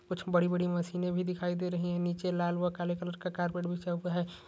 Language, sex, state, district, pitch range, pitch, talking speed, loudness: Hindi, male, Rajasthan, Nagaur, 175-180 Hz, 175 Hz, 255 wpm, -33 LUFS